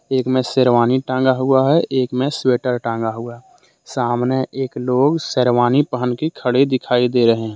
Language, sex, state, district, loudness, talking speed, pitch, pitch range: Hindi, male, Jharkhand, Deoghar, -17 LUFS, 175 wpm, 125 Hz, 120-130 Hz